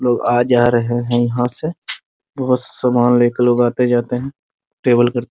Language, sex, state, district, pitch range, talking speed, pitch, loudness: Hindi, male, Bihar, Muzaffarpur, 120-125 Hz, 180 wpm, 120 Hz, -16 LUFS